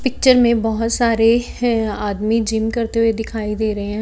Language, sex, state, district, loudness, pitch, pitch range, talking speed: Hindi, female, Chhattisgarh, Raipur, -17 LUFS, 225 Hz, 220-235 Hz, 180 wpm